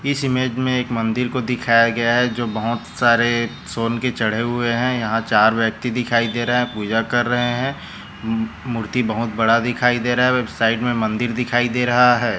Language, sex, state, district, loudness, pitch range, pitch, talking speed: Hindi, male, Chhattisgarh, Korba, -19 LUFS, 115-125 Hz, 120 Hz, 205 wpm